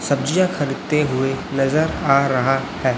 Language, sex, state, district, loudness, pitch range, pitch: Hindi, male, Chhattisgarh, Raipur, -19 LUFS, 135-150 Hz, 135 Hz